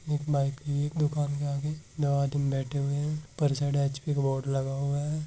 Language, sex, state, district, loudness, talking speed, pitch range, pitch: Hindi, male, Rajasthan, Nagaur, -29 LUFS, 170 wpm, 140-150 Hz, 145 Hz